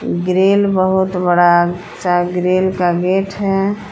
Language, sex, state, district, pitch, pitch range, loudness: Hindi, female, Jharkhand, Palamu, 185 Hz, 175-195 Hz, -15 LUFS